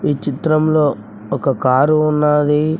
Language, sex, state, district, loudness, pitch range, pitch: Telugu, male, Telangana, Mahabubabad, -16 LUFS, 135-155 Hz, 150 Hz